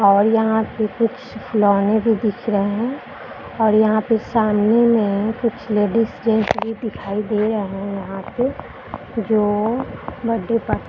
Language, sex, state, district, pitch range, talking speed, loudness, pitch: Hindi, female, Bihar, Jahanabad, 205-230 Hz, 155 wpm, -19 LUFS, 220 Hz